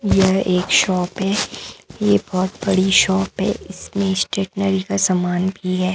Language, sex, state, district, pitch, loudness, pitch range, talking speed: Hindi, female, Bihar, West Champaran, 190 Hz, -18 LUFS, 185-195 Hz, 150 wpm